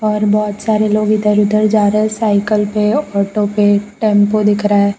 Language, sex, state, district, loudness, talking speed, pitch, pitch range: Hindi, female, Gujarat, Valsad, -14 LUFS, 205 wpm, 210 Hz, 205-215 Hz